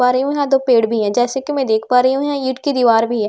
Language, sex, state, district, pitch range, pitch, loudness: Hindi, female, Bihar, Katihar, 235-275 Hz, 250 Hz, -16 LUFS